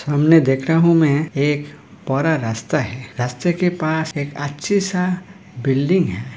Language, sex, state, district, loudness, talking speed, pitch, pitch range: Hindi, male, Uttar Pradesh, Hamirpur, -19 LUFS, 160 wpm, 150 Hz, 135-170 Hz